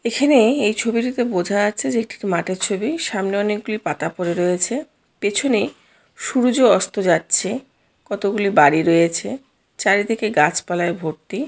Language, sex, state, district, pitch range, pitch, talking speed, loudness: Bengali, female, West Bengal, Jalpaiguri, 180-235 Hz, 205 Hz, 135 wpm, -19 LUFS